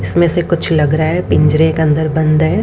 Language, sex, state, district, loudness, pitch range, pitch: Hindi, female, Haryana, Rohtak, -13 LUFS, 155-170 Hz, 160 Hz